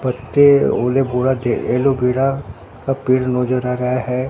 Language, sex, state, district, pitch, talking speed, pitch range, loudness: Hindi, male, Bihar, Katihar, 125 Hz, 110 wpm, 125-135 Hz, -17 LUFS